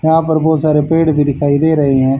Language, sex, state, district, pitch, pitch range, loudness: Hindi, male, Haryana, Charkhi Dadri, 155 Hz, 145-160 Hz, -13 LUFS